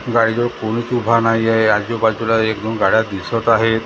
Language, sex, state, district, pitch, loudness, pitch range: Marathi, male, Maharashtra, Gondia, 115 Hz, -16 LUFS, 110-115 Hz